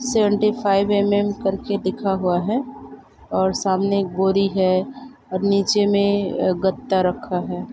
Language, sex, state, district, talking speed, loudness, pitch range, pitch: Hindi, female, Chhattisgarh, Bilaspur, 155 wpm, -20 LUFS, 190-205 Hz, 200 Hz